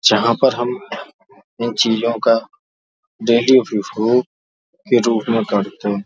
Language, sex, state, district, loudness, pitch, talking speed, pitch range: Hindi, male, Uttar Pradesh, Jalaun, -17 LUFS, 115 Hz, 130 wpm, 115-125 Hz